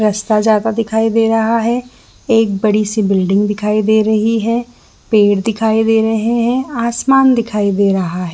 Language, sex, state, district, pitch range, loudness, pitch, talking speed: Hindi, female, Chhattisgarh, Bilaspur, 210-230 Hz, -14 LUFS, 220 Hz, 180 wpm